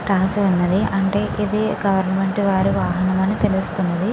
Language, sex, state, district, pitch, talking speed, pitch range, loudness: Telugu, female, Andhra Pradesh, Chittoor, 195 Hz, 130 wpm, 190-205 Hz, -19 LUFS